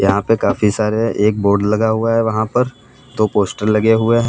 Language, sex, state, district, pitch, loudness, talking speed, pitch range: Hindi, male, Uttar Pradesh, Lalitpur, 110 Hz, -16 LUFS, 225 wpm, 105-115 Hz